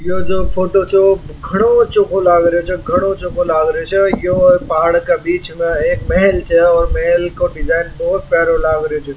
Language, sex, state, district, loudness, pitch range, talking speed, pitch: Marwari, male, Rajasthan, Churu, -14 LUFS, 170-195 Hz, 190 wpm, 180 Hz